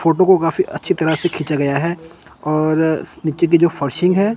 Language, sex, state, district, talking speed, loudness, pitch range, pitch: Hindi, male, Chandigarh, Chandigarh, 205 wpm, -17 LUFS, 155-175 Hz, 165 Hz